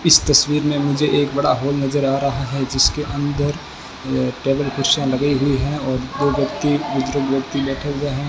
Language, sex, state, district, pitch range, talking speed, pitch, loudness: Hindi, male, Rajasthan, Bikaner, 135-145 Hz, 195 wpm, 140 Hz, -19 LUFS